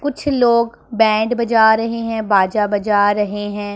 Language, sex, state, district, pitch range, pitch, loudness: Hindi, female, Punjab, Pathankot, 205-235 Hz, 220 Hz, -16 LUFS